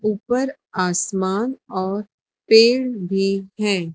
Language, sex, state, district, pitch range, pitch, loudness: Hindi, female, Madhya Pradesh, Dhar, 190-235 Hz, 200 Hz, -20 LUFS